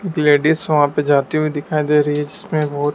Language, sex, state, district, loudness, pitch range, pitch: Hindi, male, Madhya Pradesh, Dhar, -17 LUFS, 145-155 Hz, 150 Hz